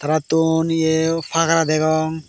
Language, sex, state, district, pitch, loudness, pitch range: Chakma, male, Tripura, Dhalai, 160 Hz, -18 LUFS, 155-165 Hz